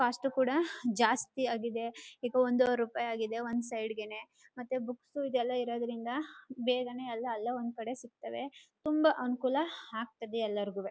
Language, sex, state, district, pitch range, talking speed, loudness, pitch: Kannada, female, Karnataka, Chamarajanagar, 230-260 Hz, 140 wpm, -34 LUFS, 245 Hz